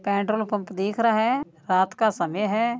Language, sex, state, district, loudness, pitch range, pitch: Marwari, male, Rajasthan, Nagaur, -24 LUFS, 195-225 Hz, 210 Hz